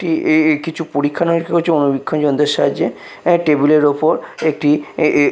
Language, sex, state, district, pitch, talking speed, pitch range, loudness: Bengali, male, Bihar, Katihar, 155 Hz, 190 wpm, 145-165 Hz, -16 LUFS